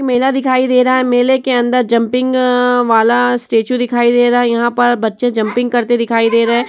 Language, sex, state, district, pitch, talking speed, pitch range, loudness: Hindi, female, Uttar Pradesh, Etah, 245 Hz, 225 wpm, 235-250 Hz, -13 LUFS